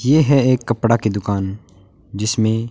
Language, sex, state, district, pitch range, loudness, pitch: Hindi, male, Rajasthan, Bikaner, 100-120 Hz, -17 LUFS, 110 Hz